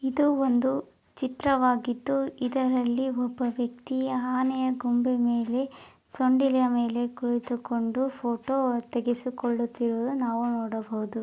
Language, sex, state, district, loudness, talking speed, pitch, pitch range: Kannada, female, Karnataka, Raichur, -27 LUFS, 95 wpm, 250 Hz, 240-260 Hz